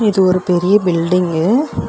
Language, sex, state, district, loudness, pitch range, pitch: Tamil, female, Tamil Nadu, Chennai, -14 LUFS, 175-205 Hz, 185 Hz